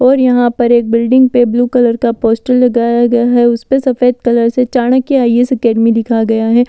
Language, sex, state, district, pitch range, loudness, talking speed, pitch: Hindi, female, Delhi, New Delhi, 235-250 Hz, -11 LUFS, 215 wpm, 240 Hz